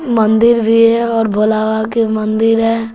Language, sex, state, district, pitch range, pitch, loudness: Hindi, female, Bihar, West Champaran, 220-230 Hz, 225 Hz, -13 LUFS